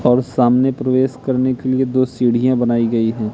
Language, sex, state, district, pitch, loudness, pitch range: Hindi, male, Madhya Pradesh, Katni, 125 Hz, -16 LUFS, 120-130 Hz